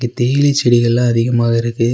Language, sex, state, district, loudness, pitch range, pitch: Tamil, male, Tamil Nadu, Nilgiris, -14 LUFS, 115-120 Hz, 120 Hz